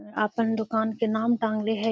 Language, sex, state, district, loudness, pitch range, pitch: Magahi, female, Bihar, Gaya, -26 LUFS, 220-225 Hz, 220 Hz